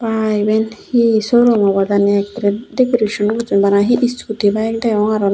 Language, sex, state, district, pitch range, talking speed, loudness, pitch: Chakma, female, Tripura, Unakoti, 205-230 Hz, 190 wpm, -15 LUFS, 215 Hz